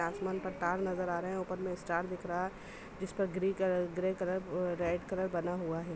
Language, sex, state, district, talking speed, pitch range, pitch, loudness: Hindi, female, Chhattisgarh, Rajnandgaon, 240 wpm, 175-190 Hz, 185 Hz, -36 LUFS